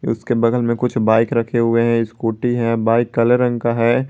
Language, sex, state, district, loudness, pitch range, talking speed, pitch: Hindi, male, Jharkhand, Garhwa, -17 LUFS, 115-120 Hz, 220 wpm, 115 Hz